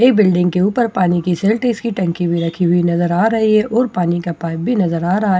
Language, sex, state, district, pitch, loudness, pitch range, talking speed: Hindi, female, Bihar, Katihar, 185 Hz, -16 LUFS, 175-220 Hz, 290 wpm